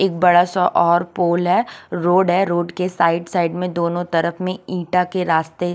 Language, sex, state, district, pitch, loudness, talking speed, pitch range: Hindi, female, Chandigarh, Chandigarh, 175 Hz, -18 LUFS, 210 wpm, 170-180 Hz